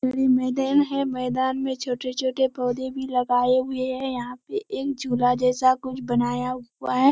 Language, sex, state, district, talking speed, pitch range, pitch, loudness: Hindi, female, Bihar, Kishanganj, 175 wpm, 250-265 Hz, 255 Hz, -24 LUFS